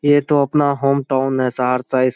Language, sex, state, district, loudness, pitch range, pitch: Hindi, male, Bihar, Saharsa, -17 LUFS, 130-145 Hz, 135 Hz